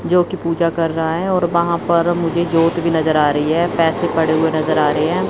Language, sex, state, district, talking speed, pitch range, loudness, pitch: Hindi, female, Chandigarh, Chandigarh, 260 wpm, 160-170 Hz, -16 LUFS, 165 Hz